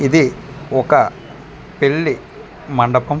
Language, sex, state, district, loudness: Telugu, male, Andhra Pradesh, Manyam, -17 LUFS